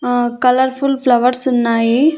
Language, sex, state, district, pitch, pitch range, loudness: Telugu, female, Andhra Pradesh, Annamaya, 250 Hz, 240-260 Hz, -14 LUFS